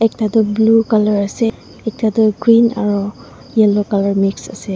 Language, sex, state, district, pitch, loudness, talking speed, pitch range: Nagamese, female, Nagaland, Dimapur, 215 Hz, -15 LUFS, 165 wpm, 205-225 Hz